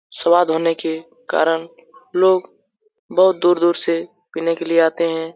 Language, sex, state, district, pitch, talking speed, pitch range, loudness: Hindi, male, Bihar, Saran, 170 Hz, 155 wpm, 165-185 Hz, -18 LUFS